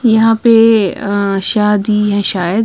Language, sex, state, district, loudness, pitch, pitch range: Hindi, female, Punjab, Kapurthala, -12 LUFS, 210 Hz, 200-225 Hz